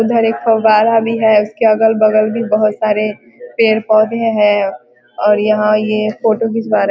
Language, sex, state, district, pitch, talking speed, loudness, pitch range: Hindi, female, Bihar, Vaishali, 215 Hz, 175 wpm, -13 LUFS, 210-225 Hz